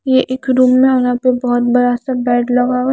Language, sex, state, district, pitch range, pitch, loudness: Hindi, female, Himachal Pradesh, Shimla, 245-260 Hz, 250 Hz, -14 LUFS